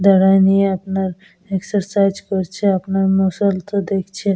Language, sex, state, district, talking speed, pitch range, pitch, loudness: Bengali, female, West Bengal, Dakshin Dinajpur, 110 wpm, 190-200 Hz, 195 Hz, -17 LUFS